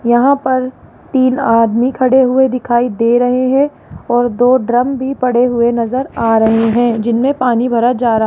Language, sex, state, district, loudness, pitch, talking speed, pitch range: Hindi, female, Rajasthan, Jaipur, -13 LUFS, 245 Hz, 180 wpm, 235-260 Hz